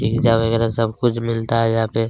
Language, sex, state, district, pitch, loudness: Hindi, male, Chhattisgarh, Kabirdham, 115 Hz, -19 LUFS